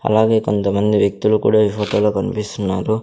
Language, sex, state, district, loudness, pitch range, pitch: Telugu, male, Andhra Pradesh, Sri Satya Sai, -17 LUFS, 100-110 Hz, 105 Hz